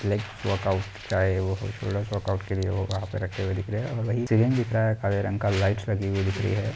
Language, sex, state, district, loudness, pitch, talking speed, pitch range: Hindi, male, Maharashtra, Pune, -27 LUFS, 100 Hz, 215 wpm, 95-110 Hz